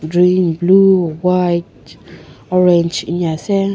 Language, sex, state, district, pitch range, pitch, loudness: Nagamese, female, Nagaland, Kohima, 170-185 Hz, 180 Hz, -14 LUFS